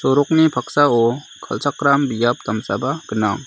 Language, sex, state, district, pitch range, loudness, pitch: Garo, male, Meghalaya, South Garo Hills, 115-145 Hz, -18 LUFS, 130 Hz